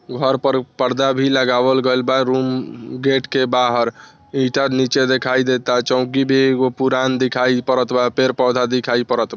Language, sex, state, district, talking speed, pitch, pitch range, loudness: Bhojpuri, male, Bihar, Saran, 165 wpm, 130 Hz, 125-130 Hz, -17 LUFS